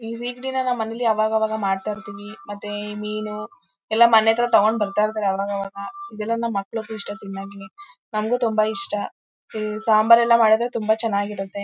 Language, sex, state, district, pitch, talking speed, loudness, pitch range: Kannada, female, Karnataka, Mysore, 215 Hz, 160 wpm, -22 LUFS, 205-230 Hz